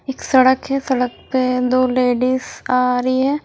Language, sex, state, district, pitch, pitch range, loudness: Hindi, female, Himachal Pradesh, Shimla, 255 Hz, 250-265 Hz, -17 LUFS